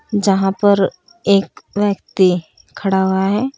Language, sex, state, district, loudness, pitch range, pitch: Hindi, female, Uttar Pradesh, Saharanpur, -17 LUFS, 190-205 Hz, 195 Hz